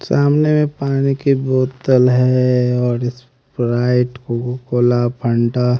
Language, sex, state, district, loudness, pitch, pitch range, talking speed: Hindi, male, Haryana, Rohtak, -16 LUFS, 125 Hz, 125-135 Hz, 115 wpm